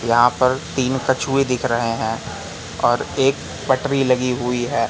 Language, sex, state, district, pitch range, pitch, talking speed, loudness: Hindi, male, Madhya Pradesh, Katni, 120-135 Hz, 125 Hz, 160 wpm, -19 LUFS